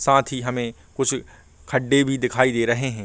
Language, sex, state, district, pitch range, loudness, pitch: Hindi, male, Uttar Pradesh, Jalaun, 115-135 Hz, -22 LUFS, 125 Hz